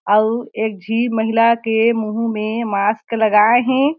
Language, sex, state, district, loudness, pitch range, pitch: Chhattisgarhi, female, Chhattisgarh, Jashpur, -17 LUFS, 215-230 Hz, 225 Hz